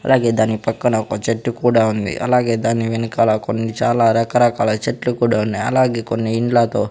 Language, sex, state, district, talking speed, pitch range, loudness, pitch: Telugu, male, Andhra Pradesh, Sri Satya Sai, 175 wpm, 110-120 Hz, -17 LUFS, 115 Hz